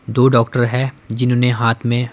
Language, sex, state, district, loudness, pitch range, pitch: Hindi, male, Himachal Pradesh, Shimla, -16 LUFS, 115-125 Hz, 125 Hz